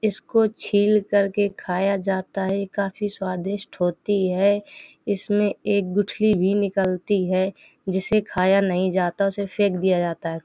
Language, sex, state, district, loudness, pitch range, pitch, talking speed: Hindi, female, Uttar Pradesh, Hamirpur, -22 LUFS, 190-205 Hz, 200 Hz, 150 wpm